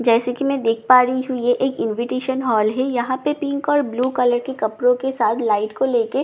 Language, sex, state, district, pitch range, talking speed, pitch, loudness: Hindi, female, Bihar, Katihar, 235-265 Hz, 270 wpm, 250 Hz, -19 LUFS